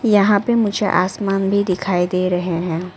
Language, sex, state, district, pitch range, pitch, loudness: Hindi, female, Arunachal Pradesh, Lower Dibang Valley, 180-205 Hz, 190 Hz, -18 LUFS